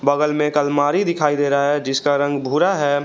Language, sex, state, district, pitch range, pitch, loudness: Hindi, male, Jharkhand, Garhwa, 145-150 Hz, 145 Hz, -18 LUFS